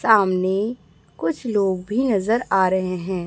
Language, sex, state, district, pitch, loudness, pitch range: Hindi, female, Chhattisgarh, Raipur, 195 Hz, -21 LUFS, 185-220 Hz